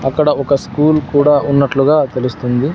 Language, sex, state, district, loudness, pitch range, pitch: Telugu, male, Andhra Pradesh, Sri Satya Sai, -13 LUFS, 135-150 Hz, 140 Hz